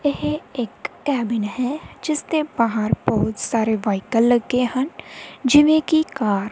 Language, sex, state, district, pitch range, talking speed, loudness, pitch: Punjabi, female, Punjab, Kapurthala, 225-295 Hz, 145 wpm, -20 LUFS, 250 Hz